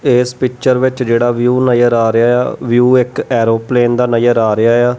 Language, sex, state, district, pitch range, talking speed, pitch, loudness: Punjabi, male, Punjab, Kapurthala, 115-125 Hz, 205 wpm, 120 Hz, -12 LUFS